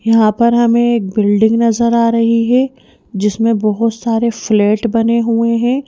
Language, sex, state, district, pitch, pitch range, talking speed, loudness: Hindi, female, Madhya Pradesh, Bhopal, 230 Hz, 220-235 Hz, 165 wpm, -13 LUFS